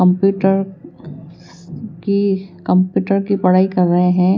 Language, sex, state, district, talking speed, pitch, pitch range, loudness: Hindi, female, Bihar, Katihar, 110 wpm, 185 Hz, 180-195 Hz, -16 LUFS